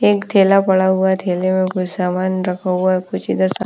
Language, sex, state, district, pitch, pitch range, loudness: Hindi, female, Bihar, Patna, 185 Hz, 185-190 Hz, -17 LUFS